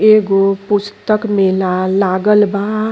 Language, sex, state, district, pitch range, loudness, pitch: Bhojpuri, female, Uttar Pradesh, Gorakhpur, 195-210 Hz, -14 LUFS, 200 Hz